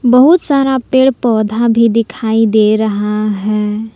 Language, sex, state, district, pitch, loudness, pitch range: Hindi, female, Jharkhand, Palamu, 225 Hz, -12 LUFS, 215-250 Hz